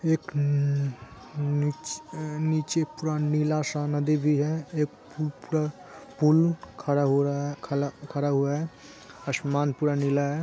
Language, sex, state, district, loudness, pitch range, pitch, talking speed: Hindi, male, Bihar, Saran, -27 LUFS, 140-155 Hz, 150 Hz, 125 wpm